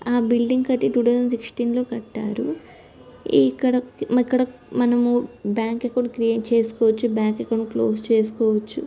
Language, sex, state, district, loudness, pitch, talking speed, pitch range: Telugu, female, Andhra Pradesh, Chittoor, -21 LUFS, 240 Hz, 135 wpm, 225-245 Hz